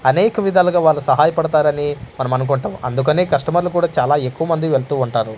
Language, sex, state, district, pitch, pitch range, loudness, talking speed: Telugu, male, Andhra Pradesh, Manyam, 145 Hz, 130-165 Hz, -17 LUFS, 155 wpm